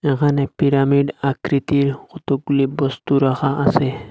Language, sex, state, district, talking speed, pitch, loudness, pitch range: Bengali, male, Assam, Hailakandi, 100 wpm, 140 Hz, -18 LUFS, 135-140 Hz